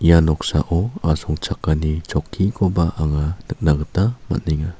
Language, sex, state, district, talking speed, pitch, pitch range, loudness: Garo, male, Meghalaya, South Garo Hills, 100 wpm, 85 Hz, 75-95 Hz, -20 LUFS